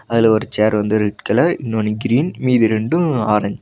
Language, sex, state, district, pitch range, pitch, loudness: Tamil, male, Tamil Nadu, Nilgiris, 105-120 Hz, 110 Hz, -17 LUFS